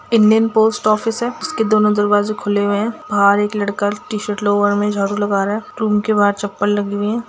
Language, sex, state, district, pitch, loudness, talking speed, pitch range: Hindi, female, Bihar, Gopalganj, 210 Hz, -17 LUFS, 220 wpm, 205-220 Hz